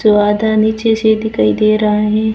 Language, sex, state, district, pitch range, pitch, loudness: Hindi, female, Rajasthan, Barmer, 210-220 Hz, 215 Hz, -13 LUFS